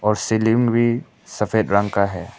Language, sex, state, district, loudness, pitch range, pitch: Hindi, male, Arunachal Pradesh, Papum Pare, -19 LUFS, 100-115 Hz, 110 Hz